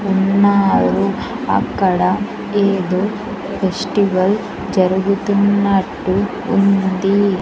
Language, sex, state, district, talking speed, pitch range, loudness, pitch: Telugu, female, Andhra Pradesh, Sri Satya Sai, 50 wpm, 190-200 Hz, -16 LUFS, 195 Hz